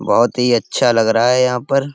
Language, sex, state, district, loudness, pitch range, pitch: Hindi, male, Uttar Pradesh, Etah, -15 LUFS, 115-125 Hz, 120 Hz